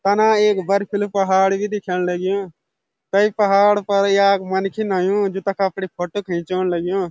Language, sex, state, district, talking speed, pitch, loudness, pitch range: Garhwali, male, Uttarakhand, Uttarkashi, 160 wpm, 195 Hz, -19 LUFS, 190-205 Hz